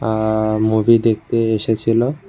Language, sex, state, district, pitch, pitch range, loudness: Bengali, male, Tripura, West Tripura, 110 Hz, 110-115 Hz, -17 LUFS